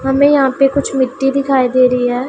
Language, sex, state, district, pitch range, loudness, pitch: Hindi, female, Punjab, Pathankot, 255-275 Hz, -13 LUFS, 265 Hz